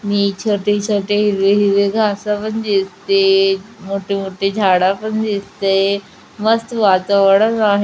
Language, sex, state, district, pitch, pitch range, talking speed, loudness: Marathi, female, Maharashtra, Chandrapur, 205 Hz, 195-215 Hz, 105 wpm, -16 LUFS